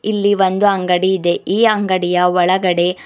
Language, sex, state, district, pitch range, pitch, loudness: Kannada, female, Karnataka, Bidar, 180-205 Hz, 185 Hz, -15 LUFS